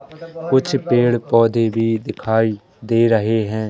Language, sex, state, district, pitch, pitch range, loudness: Hindi, male, Madhya Pradesh, Katni, 115 Hz, 110-130 Hz, -17 LUFS